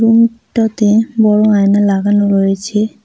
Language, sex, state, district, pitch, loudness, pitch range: Bengali, female, West Bengal, Cooch Behar, 210 Hz, -12 LUFS, 200-225 Hz